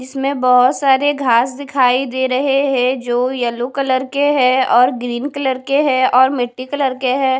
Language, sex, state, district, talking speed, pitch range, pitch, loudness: Hindi, female, Odisha, Nuapada, 185 wpm, 250-275 Hz, 260 Hz, -15 LUFS